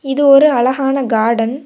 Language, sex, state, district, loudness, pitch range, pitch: Tamil, female, Tamil Nadu, Kanyakumari, -12 LUFS, 235-275 Hz, 270 Hz